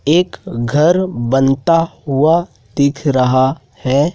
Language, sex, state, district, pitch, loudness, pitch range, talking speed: Hindi, male, Madhya Pradesh, Dhar, 140 Hz, -15 LUFS, 130-165 Hz, 100 wpm